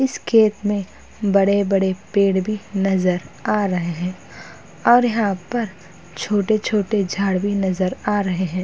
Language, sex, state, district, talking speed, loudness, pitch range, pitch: Hindi, female, Uttar Pradesh, Hamirpur, 140 wpm, -20 LUFS, 185-210 Hz, 200 Hz